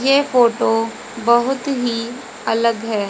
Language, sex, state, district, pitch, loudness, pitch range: Hindi, female, Haryana, Rohtak, 235 Hz, -18 LUFS, 230-255 Hz